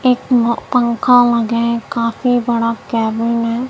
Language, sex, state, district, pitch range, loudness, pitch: Hindi, female, Punjab, Kapurthala, 230-245 Hz, -15 LUFS, 235 Hz